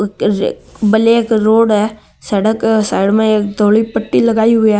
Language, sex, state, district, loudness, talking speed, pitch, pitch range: Marwari, male, Rajasthan, Nagaur, -13 LUFS, 160 wpm, 220 Hz, 210-225 Hz